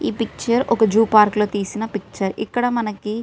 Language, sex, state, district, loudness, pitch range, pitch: Telugu, female, Telangana, Karimnagar, -19 LUFS, 210-225 Hz, 215 Hz